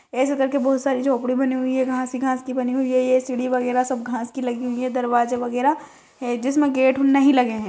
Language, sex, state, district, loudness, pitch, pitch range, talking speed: Hindi, female, Bihar, East Champaran, -21 LUFS, 255 Hz, 250-265 Hz, 250 wpm